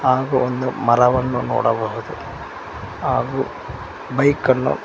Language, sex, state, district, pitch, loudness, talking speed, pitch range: Kannada, male, Karnataka, Koppal, 130 Hz, -19 LUFS, 75 wpm, 125-130 Hz